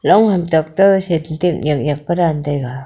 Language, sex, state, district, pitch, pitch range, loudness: Wancho, female, Arunachal Pradesh, Longding, 160 Hz, 150-175 Hz, -16 LUFS